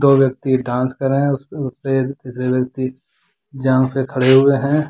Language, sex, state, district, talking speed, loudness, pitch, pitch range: Hindi, male, Jharkhand, Deoghar, 135 wpm, -18 LUFS, 135 Hz, 130-135 Hz